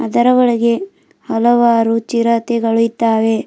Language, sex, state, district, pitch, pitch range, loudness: Kannada, female, Karnataka, Bidar, 230 Hz, 225-240 Hz, -14 LUFS